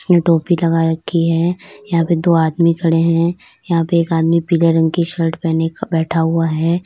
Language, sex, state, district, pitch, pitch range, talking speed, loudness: Hindi, female, Uttar Pradesh, Lalitpur, 165 Hz, 165-170 Hz, 200 wpm, -16 LUFS